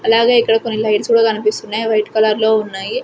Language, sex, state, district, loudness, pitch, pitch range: Telugu, female, Andhra Pradesh, Sri Satya Sai, -15 LUFS, 220 Hz, 215-230 Hz